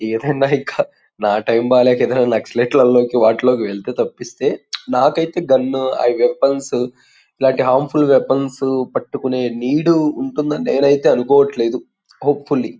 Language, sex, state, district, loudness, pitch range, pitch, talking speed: Telugu, male, Andhra Pradesh, Guntur, -16 LUFS, 120-140 Hz, 130 Hz, 115 wpm